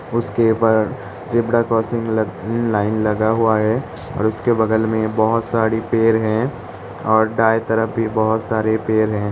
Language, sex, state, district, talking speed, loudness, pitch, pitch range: Hindi, male, Uttar Pradesh, Hamirpur, 160 wpm, -18 LUFS, 110 Hz, 110-115 Hz